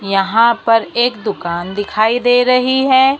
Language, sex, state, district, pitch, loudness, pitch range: Hindi, female, Maharashtra, Mumbai Suburban, 230 Hz, -14 LUFS, 205-250 Hz